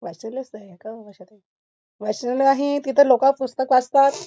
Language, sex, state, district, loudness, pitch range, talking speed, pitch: Marathi, female, Maharashtra, Chandrapur, -19 LUFS, 215-270 Hz, 180 wpm, 250 Hz